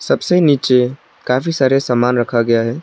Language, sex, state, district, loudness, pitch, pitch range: Hindi, male, Arunachal Pradesh, Lower Dibang Valley, -15 LUFS, 125 Hz, 120-140 Hz